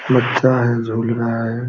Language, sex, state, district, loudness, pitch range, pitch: Hindi, male, Uttar Pradesh, Jalaun, -18 LUFS, 115-125 Hz, 120 Hz